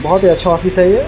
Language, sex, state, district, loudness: Hindi, male, Bihar, Vaishali, -12 LUFS